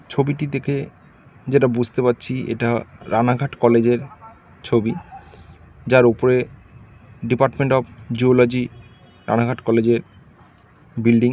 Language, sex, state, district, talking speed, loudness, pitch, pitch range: Bengali, male, West Bengal, North 24 Parganas, 100 wpm, -19 LUFS, 120 Hz, 115-130 Hz